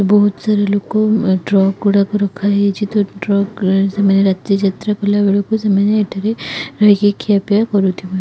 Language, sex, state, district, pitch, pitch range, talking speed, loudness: Odia, female, Odisha, Khordha, 200 Hz, 195-210 Hz, 140 wpm, -15 LUFS